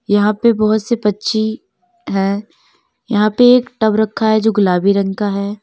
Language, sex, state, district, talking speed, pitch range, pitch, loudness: Hindi, female, Uttar Pradesh, Lalitpur, 180 wpm, 205-235 Hz, 215 Hz, -15 LUFS